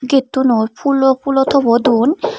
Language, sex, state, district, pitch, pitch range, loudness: Chakma, female, Tripura, Dhalai, 265 Hz, 245-280 Hz, -14 LUFS